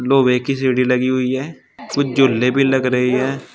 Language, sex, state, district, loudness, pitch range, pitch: Hindi, male, Uttar Pradesh, Shamli, -17 LUFS, 125-135 Hz, 130 Hz